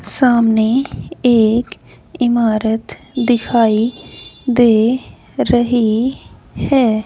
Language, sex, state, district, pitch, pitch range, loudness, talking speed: Hindi, female, Haryana, Charkhi Dadri, 240 Hz, 220-250 Hz, -15 LUFS, 60 wpm